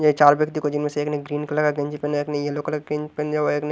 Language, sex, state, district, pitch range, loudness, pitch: Hindi, male, Odisha, Nuapada, 145-150 Hz, -23 LUFS, 150 Hz